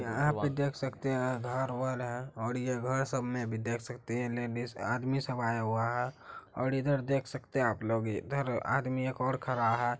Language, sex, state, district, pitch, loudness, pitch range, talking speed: Hindi, male, Bihar, Araria, 125 Hz, -33 LUFS, 120-130 Hz, 230 wpm